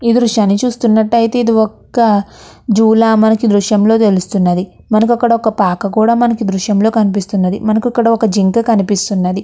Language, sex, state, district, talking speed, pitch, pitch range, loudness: Telugu, female, Andhra Pradesh, Chittoor, 170 wpm, 220 Hz, 200-230 Hz, -12 LUFS